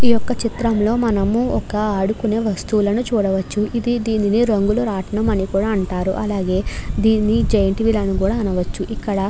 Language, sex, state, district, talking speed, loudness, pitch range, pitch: Telugu, female, Andhra Pradesh, Krishna, 150 wpm, -19 LUFS, 195-225 Hz, 210 Hz